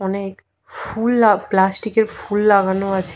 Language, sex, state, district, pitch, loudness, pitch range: Bengali, female, West Bengal, Purulia, 200 Hz, -17 LUFS, 190-220 Hz